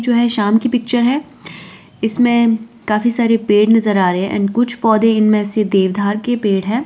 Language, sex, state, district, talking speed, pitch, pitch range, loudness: Hindi, female, Himachal Pradesh, Shimla, 200 wpm, 225 Hz, 205-240 Hz, -15 LUFS